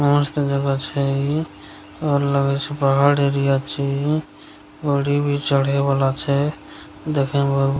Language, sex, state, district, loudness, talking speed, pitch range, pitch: Maithili, male, Bihar, Begusarai, -20 LUFS, 145 wpm, 140-145 Hz, 140 Hz